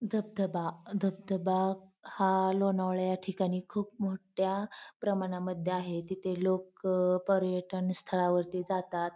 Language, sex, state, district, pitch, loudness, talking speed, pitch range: Marathi, female, Maharashtra, Pune, 185 Hz, -32 LUFS, 90 wpm, 185-195 Hz